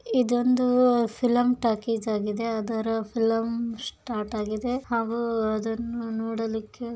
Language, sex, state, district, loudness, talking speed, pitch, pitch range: Kannada, female, Karnataka, Bijapur, -26 LUFS, 110 wpm, 230 Hz, 225-245 Hz